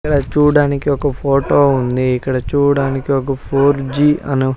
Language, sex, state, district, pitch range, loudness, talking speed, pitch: Telugu, male, Andhra Pradesh, Sri Satya Sai, 135-145 Hz, -15 LUFS, 145 wpm, 140 Hz